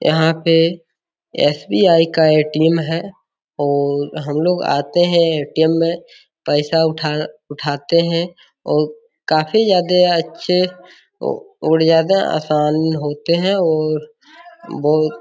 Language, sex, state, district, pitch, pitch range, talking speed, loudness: Hindi, male, Bihar, Araria, 160 Hz, 150-175 Hz, 115 wpm, -16 LUFS